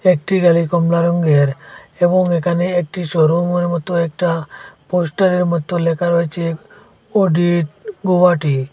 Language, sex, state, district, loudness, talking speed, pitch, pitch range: Bengali, male, Assam, Hailakandi, -16 LUFS, 110 wpm, 175 Hz, 165-180 Hz